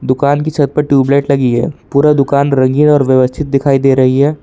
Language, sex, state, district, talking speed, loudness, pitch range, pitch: Hindi, male, Jharkhand, Palamu, 215 wpm, -11 LUFS, 135-145 Hz, 140 Hz